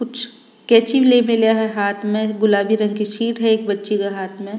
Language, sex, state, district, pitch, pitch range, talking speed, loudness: Rajasthani, female, Rajasthan, Nagaur, 220 Hz, 205-230 Hz, 220 wpm, -17 LUFS